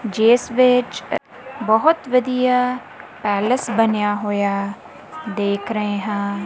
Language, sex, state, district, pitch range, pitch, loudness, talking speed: Punjabi, female, Punjab, Kapurthala, 205-250 Hz, 220 Hz, -19 LUFS, 95 wpm